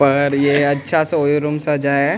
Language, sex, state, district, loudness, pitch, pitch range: Hindi, male, Maharashtra, Mumbai Suburban, -16 LUFS, 145 Hz, 140-150 Hz